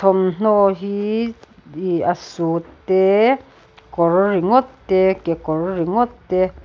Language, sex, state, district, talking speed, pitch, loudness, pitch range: Mizo, female, Mizoram, Aizawl, 110 wpm, 190 Hz, -18 LUFS, 175-210 Hz